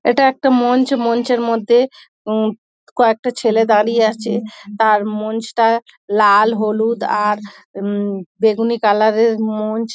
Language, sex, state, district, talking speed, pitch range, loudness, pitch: Bengali, female, West Bengal, Dakshin Dinajpur, 115 wpm, 215-235 Hz, -16 LUFS, 225 Hz